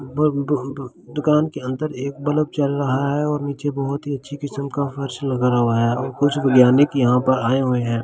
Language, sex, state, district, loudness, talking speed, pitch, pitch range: Hindi, male, Delhi, New Delhi, -20 LUFS, 225 wpm, 140 Hz, 130-145 Hz